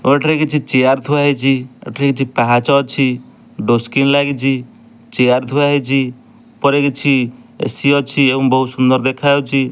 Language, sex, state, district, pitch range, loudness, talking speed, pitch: Odia, male, Odisha, Nuapada, 130-140 Hz, -15 LUFS, 130 wpm, 135 Hz